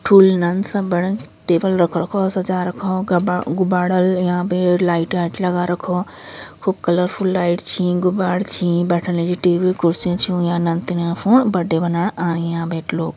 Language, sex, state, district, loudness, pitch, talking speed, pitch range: Hindi, female, Uttarakhand, Uttarkashi, -18 LUFS, 180 Hz, 160 wpm, 175-185 Hz